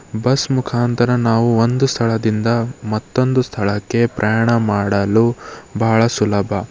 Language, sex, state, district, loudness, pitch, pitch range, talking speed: Kannada, male, Karnataka, Bidar, -17 LUFS, 115 Hz, 110-125 Hz, 100 wpm